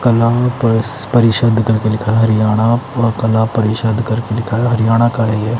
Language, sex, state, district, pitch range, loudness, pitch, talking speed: Hindi, male, Chandigarh, Chandigarh, 110-120 Hz, -14 LUFS, 115 Hz, 160 wpm